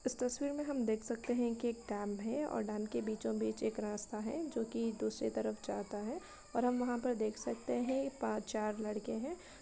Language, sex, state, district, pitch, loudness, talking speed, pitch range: Hindi, female, Uttar Pradesh, Ghazipur, 230 Hz, -39 LUFS, 220 wpm, 210-250 Hz